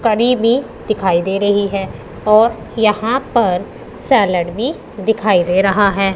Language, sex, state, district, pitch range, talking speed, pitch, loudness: Hindi, female, Punjab, Pathankot, 195-235 Hz, 145 wpm, 210 Hz, -15 LUFS